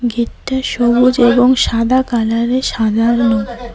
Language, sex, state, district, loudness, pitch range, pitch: Bengali, female, West Bengal, Cooch Behar, -14 LUFS, 235-250 Hz, 240 Hz